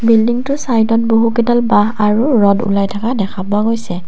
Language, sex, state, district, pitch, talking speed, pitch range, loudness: Assamese, female, Assam, Kamrup Metropolitan, 225 Hz, 160 wpm, 205-235 Hz, -14 LUFS